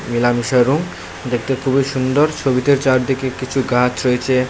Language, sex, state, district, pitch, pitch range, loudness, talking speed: Bengali, male, Tripura, Unakoti, 130 Hz, 125-135 Hz, -17 LUFS, 135 wpm